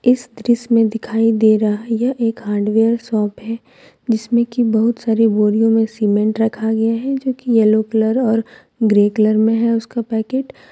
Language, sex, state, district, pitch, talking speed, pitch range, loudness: Hindi, female, Jharkhand, Deoghar, 225 Hz, 190 wpm, 220-235 Hz, -16 LUFS